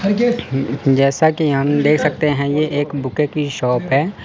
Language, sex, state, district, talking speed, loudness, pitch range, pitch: Hindi, male, Chandigarh, Chandigarh, 170 wpm, -17 LUFS, 135-155 Hz, 145 Hz